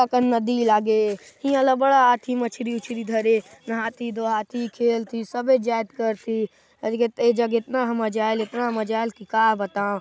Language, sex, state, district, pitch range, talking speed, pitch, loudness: Chhattisgarhi, male, Chhattisgarh, Sarguja, 220-240 Hz, 175 wpm, 230 Hz, -23 LUFS